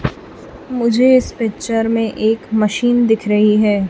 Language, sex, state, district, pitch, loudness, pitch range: Hindi, female, Chhattisgarh, Raipur, 225 Hz, -15 LUFS, 210-240 Hz